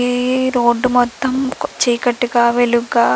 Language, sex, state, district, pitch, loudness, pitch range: Telugu, female, Andhra Pradesh, Chittoor, 245 Hz, -16 LUFS, 240-250 Hz